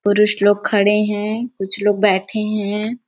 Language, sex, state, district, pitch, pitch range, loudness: Hindi, female, Chhattisgarh, Sarguja, 210 Hz, 205-215 Hz, -17 LUFS